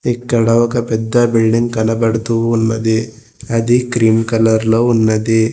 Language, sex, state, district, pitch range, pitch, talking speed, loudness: Telugu, male, Telangana, Hyderabad, 110-120 Hz, 115 Hz, 110 wpm, -14 LUFS